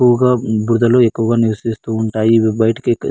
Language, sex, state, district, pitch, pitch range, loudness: Telugu, male, Andhra Pradesh, Anantapur, 115 Hz, 110-120 Hz, -15 LUFS